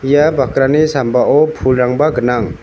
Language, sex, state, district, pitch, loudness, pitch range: Garo, male, Meghalaya, West Garo Hills, 135 Hz, -13 LUFS, 125-145 Hz